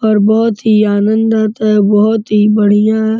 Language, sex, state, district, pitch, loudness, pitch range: Hindi, male, Uttar Pradesh, Gorakhpur, 215 Hz, -11 LUFS, 210-220 Hz